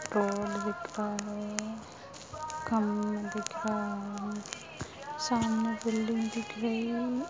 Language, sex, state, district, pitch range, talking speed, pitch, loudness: Hindi, female, Chhattisgarh, Jashpur, 210-230 Hz, 75 wpm, 220 Hz, -33 LUFS